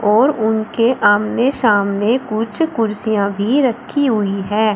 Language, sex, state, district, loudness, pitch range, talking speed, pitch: Hindi, female, Uttar Pradesh, Shamli, -16 LUFS, 210-250 Hz, 125 wpm, 220 Hz